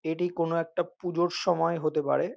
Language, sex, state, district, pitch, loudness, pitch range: Bengali, male, West Bengal, North 24 Parganas, 170 Hz, -28 LUFS, 165-175 Hz